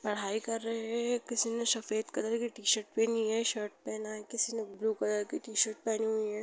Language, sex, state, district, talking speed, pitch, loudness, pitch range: Hindi, female, Chhattisgarh, Rajnandgaon, 225 wpm, 220 Hz, -33 LUFS, 215-230 Hz